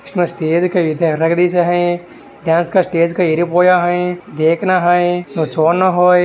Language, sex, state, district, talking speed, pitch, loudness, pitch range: Hindi, male, Maharashtra, Sindhudurg, 105 wpm, 175 Hz, -14 LUFS, 165-180 Hz